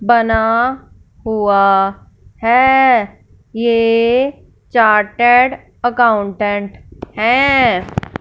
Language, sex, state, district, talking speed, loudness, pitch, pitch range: Hindi, female, Punjab, Fazilka, 50 wpm, -13 LUFS, 230 Hz, 210-245 Hz